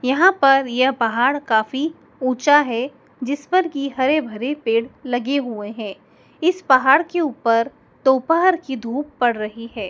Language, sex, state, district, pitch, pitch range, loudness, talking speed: Hindi, male, Madhya Pradesh, Dhar, 265 Hz, 235-290 Hz, -19 LUFS, 150 wpm